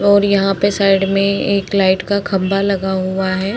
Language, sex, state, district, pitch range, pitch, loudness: Hindi, female, Uttar Pradesh, Etah, 190-200 Hz, 195 Hz, -15 LUFS